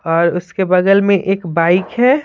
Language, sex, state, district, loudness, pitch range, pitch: Hindi, female, Bihar, Patna, -14 LUFS, 170-195 Hz, 185 Hz